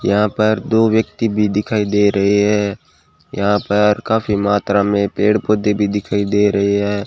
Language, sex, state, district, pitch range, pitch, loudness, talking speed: Hindi, male, Rajasthan, Bikaner, 100-105 Hz, 105 Hz, -16 LUFS, 180 wpm